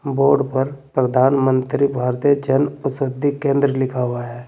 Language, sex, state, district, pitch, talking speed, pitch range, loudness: Hindi, male, Uttar Pradesh, Saharanpur, 135 Hz, 135 wpm, 130-140 Hz, -18 LUFS